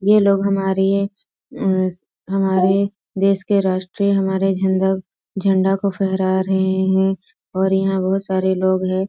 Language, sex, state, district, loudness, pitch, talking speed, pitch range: Hindi, female, Bihar, Sitamarhi, -18 LUFS, 190 Hz, 140 wpm, 190-195 Hz